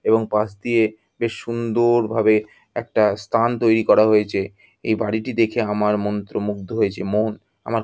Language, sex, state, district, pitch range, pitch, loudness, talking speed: Bengali, female, West Bengal, Jhargram, 105-115 Hz, 110 Hz, -20 LUFS, 145 wpm